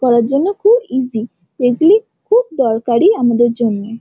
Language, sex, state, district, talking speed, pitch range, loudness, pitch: Bengali, female, West Bengal, Jhargram, 135 wpm, 230-365 Hz, -14 LUFS, 245 Hz